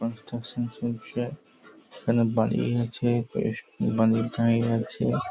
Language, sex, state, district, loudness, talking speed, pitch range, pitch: Bengali, male, West Bengal, Jhargram, -27 LUFS, 80 wpm, 115-120 Hz, 115 Hz